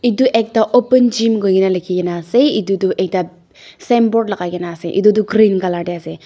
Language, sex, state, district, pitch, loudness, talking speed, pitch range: Nagamese, female, Nagaland, Dimapur, 195 Hz, -15 LUFS, 200 wpm, 180-230 Hz